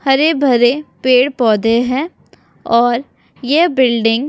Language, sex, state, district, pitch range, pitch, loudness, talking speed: Hindi, female, Chhattisgarh, Bilaspur, 235-285 Hz, 255 Hz, -14 LUFS, 125 wpm